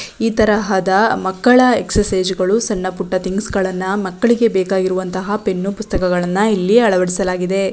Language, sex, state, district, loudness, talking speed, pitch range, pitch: Kannada, female, Karnataka, Shimoga, -16 LUFS, 100 wpm, 185-210 Hz, 195 Hz